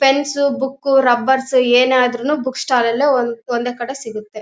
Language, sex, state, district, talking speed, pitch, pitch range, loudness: Kannada, female, Karnataka, Bellary, 135 wpm, 255 Hz, 240-270 Hz, -16 LUFS